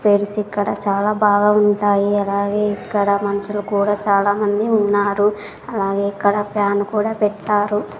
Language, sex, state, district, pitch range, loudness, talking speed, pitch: Telugu, female, Andhra Pradesh, Sri Satya Sai, 200-210 Hz, -18 LUFS, 120 wpm, 205 Hz